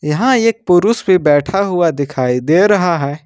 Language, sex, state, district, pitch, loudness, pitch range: Hindi, male, Jharkhand, Ranchi, 175 Hz, -13 LUFS, 145-200 Hz